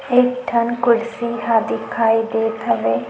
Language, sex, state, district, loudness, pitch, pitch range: Chhattisgarhi, female, Chhattisgarh, Sukma, -18 LUFS, 230 Hz, 225-240 Hz